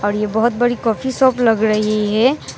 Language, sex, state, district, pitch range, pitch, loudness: Hindi, female, West Bengal, Alipurduar, 215-245 Hz, 225 Hz, -16 LUFS